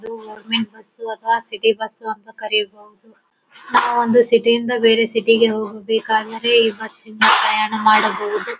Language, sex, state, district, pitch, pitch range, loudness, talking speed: Kannada, female, Karnataka, Bijapur, 225 Hz, 215-230 Hz, -17 LUFS, 135 wpm